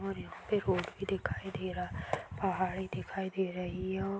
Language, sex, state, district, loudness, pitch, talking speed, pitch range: Hindi, female, Uttar Pradesh, Budaun, -36 LUFS, 190 Hz, 215 wpm, 185-195 Hz